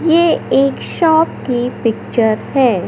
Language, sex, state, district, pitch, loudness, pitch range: Hindi, male, Madhya Pradesh, Katni, 270 Hz, -15 LUFS, 240-325 Hz